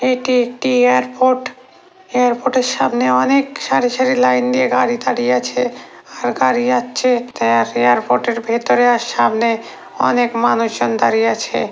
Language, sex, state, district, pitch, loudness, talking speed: Bengali, female, West Bengal, North 24 Parganas, 230 Hz, -16 LUFS, 140 wpm